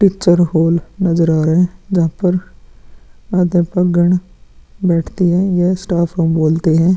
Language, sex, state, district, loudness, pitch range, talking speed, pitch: Hindi, male, Bihar, Vaishali, -15 LUFS, 165-185 Hz, 130 wpm, 175 Hz